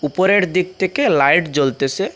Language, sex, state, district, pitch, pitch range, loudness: Bengali, male, Assam, Hailakandi, 180 Hz, 140-190 Hz, -16 LUFS